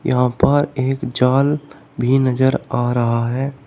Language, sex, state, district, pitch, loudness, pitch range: Hindi, male, Uttar Pradesh, Shamli, 130 Hz, -18 LUFS, 125-140 Hz